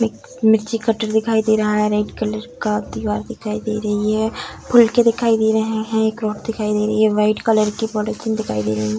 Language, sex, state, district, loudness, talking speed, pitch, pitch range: Hindi, female, Bihar, Darbhanga, -19 LUFS, 220 wpm, 220 Hz, 210-225 Hz